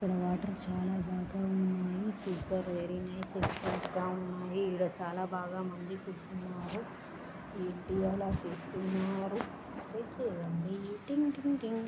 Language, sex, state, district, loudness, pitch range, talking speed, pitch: Telugu, female, Andhra Pradesh, Srikakulam, -37 LUFS, 180-195 Hz, 120 wpm, 185 Hz